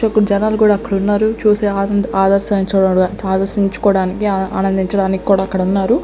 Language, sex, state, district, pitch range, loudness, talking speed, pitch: Telugu, female, Andhra Pradesh, Sri Satya Sai, 190-205 Hz, -15 LUFS, 110 wpm, 200 Hz